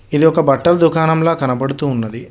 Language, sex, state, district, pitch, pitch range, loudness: Telugu, male, Telangana, Hyderabad, 150 Hz, 135-165 Hz, -15 LUFS